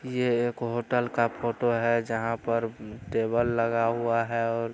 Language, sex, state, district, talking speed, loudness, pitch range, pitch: Hindi, male, Bihar, Araria, 175 wpm, -27 LUFS, 115-120 Hz, 115 Hz